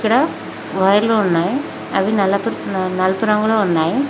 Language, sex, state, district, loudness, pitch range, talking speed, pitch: Telugu, female, Telangana, Mahabubabad, -17 LUFS, 190-225 Hz, 100 wpm, 200 Hz